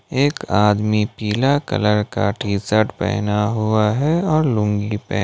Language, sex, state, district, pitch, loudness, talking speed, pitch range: Hindi, male, Jharkhand, Ranchi, 105 Hz, -19 LUFS, 150 wpm, 105-130 Hz